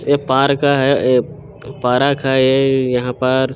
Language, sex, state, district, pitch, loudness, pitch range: Hindi, male, Chhattisgarh, Bilaspur, 135 Hz, -15 LUFS, 130-140 Hz